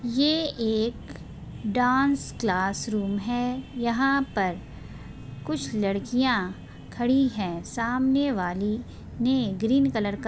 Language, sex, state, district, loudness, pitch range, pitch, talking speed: Hindi, female, Maharashtra, Solapur, -26 LUFS, 205-260 Hz, 235 Hz, 105 wpm